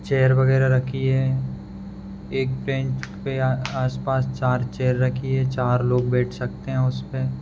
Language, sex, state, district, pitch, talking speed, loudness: Hindi, male, Maharashtra, Pune, 125 Hz, 155 wpm, -23 LUFS